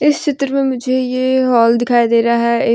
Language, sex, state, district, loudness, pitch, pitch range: Hindi, female, Jharkhand, Deoghar, -14 LUFS, 255 Hz, 235-270 Hz